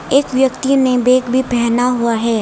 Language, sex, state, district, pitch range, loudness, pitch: Hindi, female, Arunachal Pradesh, Lower Dibang Valley, 235-260 Hz, -14 LUFS, 250 Hz